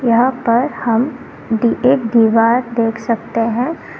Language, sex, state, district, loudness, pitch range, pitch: Hindi, female, Karnataka, Bangalore, -15 LUFS, 230-250 Hz, 235 Hz